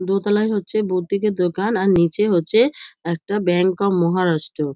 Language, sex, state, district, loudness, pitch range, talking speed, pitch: Bengali, female, West Bengal, North 24 Parganas, -19 LUFS, 175-210 Hz, 150 wpm, 190 Hz